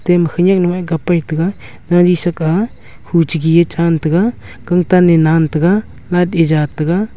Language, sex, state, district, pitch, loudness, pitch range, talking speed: Wancho, male, Arunachal Pradesh, Longding, 175 Hz, -14 LUFS, 165-180 Hz, 200 wpm